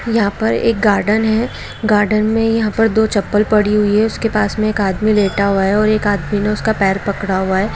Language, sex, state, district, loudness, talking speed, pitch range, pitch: Hindi, female, Jharkhand, Jamtara, -15 LUFS, 240 wpm, 200-220 Hz, 210 Hz